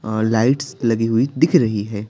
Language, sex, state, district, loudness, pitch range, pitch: Hindi, male, Bihar, Patna, -18 LUFS, 110-130 Hz, 115 Hz